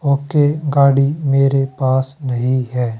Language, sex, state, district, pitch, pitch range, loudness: Hindi, male, Haryana, Charkhi Dadri, 135 Hz, 130-140 Hz, -16 LUFS